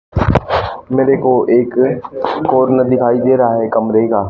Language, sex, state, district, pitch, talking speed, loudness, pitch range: Hindi, female, Haryana, Charkhi Dadri, 125 Hz, 140 wpm, -13 LUFS, 115-130 Hz